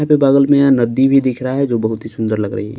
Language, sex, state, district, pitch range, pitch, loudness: Hindi, male, Maharashtra, Washim, 110-140 Hz, 130 Hz, -14 LUFS